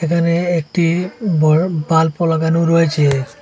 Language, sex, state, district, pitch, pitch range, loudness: Bengali, male, Assam, Hailakandi, 165 Hz, 155-170 Hz, -15 LUFS